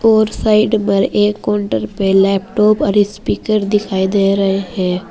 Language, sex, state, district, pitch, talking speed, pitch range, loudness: Hindi, female, Uttar Pradesh, Saharanpur, 205 Hz, 150 wpm, 195-210 Hz, -15 LUFS